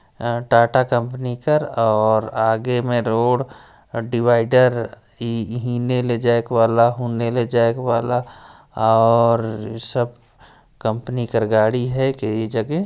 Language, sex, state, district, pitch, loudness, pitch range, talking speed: Hindi, male, Chhattisgarh, Jashpur, 120 Hz, -18 LUFS, 115-125 Hz, 110 wpm